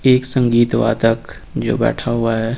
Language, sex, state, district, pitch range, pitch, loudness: Hindi, male, Uttar Pradesh, Lucknow, 115-125 Hz, 120 Hz, -17 LUFS